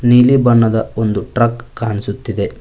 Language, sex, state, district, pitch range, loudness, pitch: Kannada, male, Karnataka, Koppal, 110-120 Hz, -15 LUFS, 115 Hz